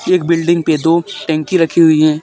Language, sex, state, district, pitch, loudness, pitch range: Hindi, male, Jharkhand, Deoghar, 165 Hz, -13 LUFS, 155-170 Hz